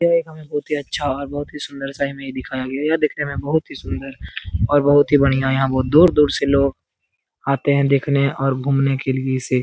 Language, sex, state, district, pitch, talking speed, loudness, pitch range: Hindi, male, Bihar, Lakhisarai, 140 Hz, 245 wpm, -19 LUFS, 135-145 Hz